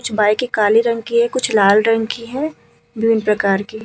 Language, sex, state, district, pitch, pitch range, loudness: Hindi, female, Uttar Pradesh, Hamirpur, 225 Hz, 210-235 Hz, -16 LUFS